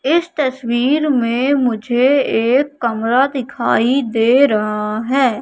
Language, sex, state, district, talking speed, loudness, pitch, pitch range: Hindi, female, Madhya Pradesh, Katni, 110 wpm, -16 LUFS, 250 Hz, 235-275 Hz